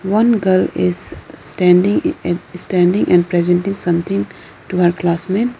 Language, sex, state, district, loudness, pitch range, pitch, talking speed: English, female, Arunachal Pradesh, Lower Dibang Valley, -16 LUFS, 175-195 Hz, 180 Hz, 130 wpm